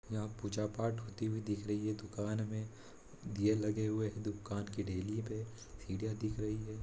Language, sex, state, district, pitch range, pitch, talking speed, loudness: Hindi, male, Bihar, Saran, 105-110 Hz, 110 Hz, 195 wpm, -39 LUFS